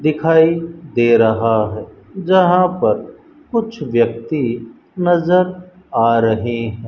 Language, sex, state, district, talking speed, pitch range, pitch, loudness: Hindi, male, Rajasthan, Bikaner, 105 wpm, 115-180 Hz, 160 Hz, -16 LUFS